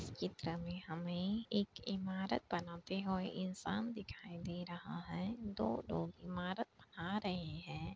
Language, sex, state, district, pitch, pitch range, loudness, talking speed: Hindi, female, Bihar, Kishanganj, 180 Hz, 170-200 Hz, -43 LUFS, 145 wpm